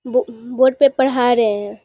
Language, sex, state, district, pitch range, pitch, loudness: Hindi, female, Bihar, Muzaffarpur, 230-260 Hz, 245 Hz, -16 LUFS